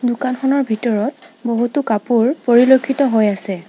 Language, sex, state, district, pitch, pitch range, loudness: Assamese, female, Assam, Sonitpur, 240 Hz, 220-265 Hz, -16 LUFS